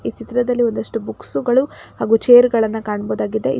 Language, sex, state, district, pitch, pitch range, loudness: Kannada, female, Karnataka, Bangalore, 235 Hz, 220-245 Hz, -17 LUFS